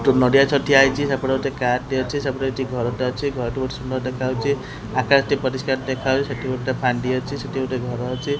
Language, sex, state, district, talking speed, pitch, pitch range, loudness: Odia, male, Odisha, Khordha, 205 wpm, 130 Hz, 130-135 Hz, -21 LUFS